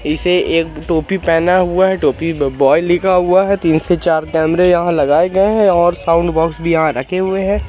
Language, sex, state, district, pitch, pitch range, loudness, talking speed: Hindi, male, Madhya Pradesh, Katni, 175 Hz, 160-185 Hz, -14 LUFS, 210 wpm